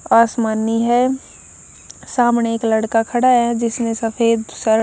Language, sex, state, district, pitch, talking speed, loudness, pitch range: Hindi, female, Maharashtra, Gondia, 230 Hz, 125 wpm, -17 LUFS, 225-240 Hz